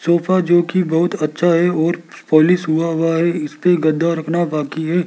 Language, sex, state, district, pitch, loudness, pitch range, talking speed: Hindi, male, Rajasthan, Jaipur, 170 Hz, -16 LUFS, 160-175 Hz, 200 wpm